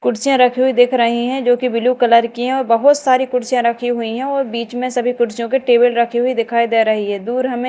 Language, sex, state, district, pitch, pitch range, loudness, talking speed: Hindi, female, Madhya Pradesh, Dhar, 245 Hz, 235-255 Hz, -15 LUFS, 275 wpm